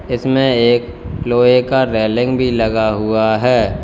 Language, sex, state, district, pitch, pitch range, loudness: Hindi, male, Uttar Pradesh, Lalitpur, 120 Hz, 110-125 Hz, -14 LUFS